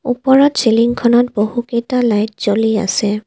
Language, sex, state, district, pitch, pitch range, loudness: Assamese, female, Assam, Kamrup Metropolitan, 235 Hz, 215-245 Hz, -14 LUFS